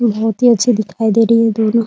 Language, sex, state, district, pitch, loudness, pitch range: Hindi, female, Bihar, Muzaffarpur, 225 Hz, -13 LUFS, 220-230 Hz